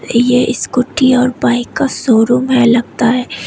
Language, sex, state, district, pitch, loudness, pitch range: Hindi, female, Tripura, West Tripura, 245 Hz, -12 LUFS, 240-255 Hz